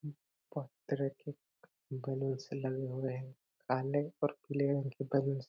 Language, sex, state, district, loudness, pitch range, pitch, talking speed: Hindi, male, Chhattisgarh, Korba, -37 LUFS, 130-145 Hz, 140 Hz, 155 wpm